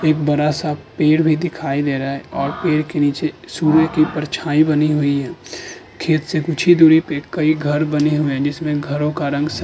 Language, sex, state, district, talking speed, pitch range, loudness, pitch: Hindi, male, Uttar Pradesh, Budaun, 230 wpm, 145-155 Hz, -17 LUFS, 150 Hz